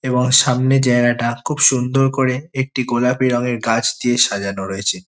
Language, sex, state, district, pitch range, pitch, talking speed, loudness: Bengali, male, West Bengal, Kolkata, 120-130 Hz, 125 Hz, 155 wpm, -16 LUFS